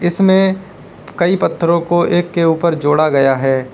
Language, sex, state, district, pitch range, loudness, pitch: Hindi, male, Uttar Pradesh, Lalitpur, 155-185 Hz, -14 LUFS, 170 Hz